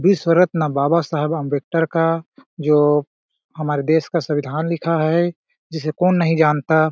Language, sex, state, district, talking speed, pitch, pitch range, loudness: Hindi, male, Chhattisgarh, Balrampur, 165 wpm, 160 Hz, 150-165 Hz, -18 LUFS